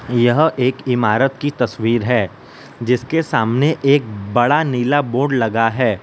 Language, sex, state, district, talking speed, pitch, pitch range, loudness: Hindi, male, Gujarat, Valsad, 140 wpm, 125 Hz, 115-140 Hz, -17 LUFS